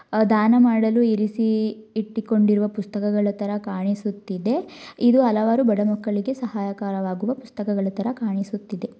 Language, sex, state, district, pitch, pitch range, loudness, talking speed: Kannada, female, Karnataka, Mysore, 215 Hz, 205-230 Hz, -22 LUFS, 100 wpm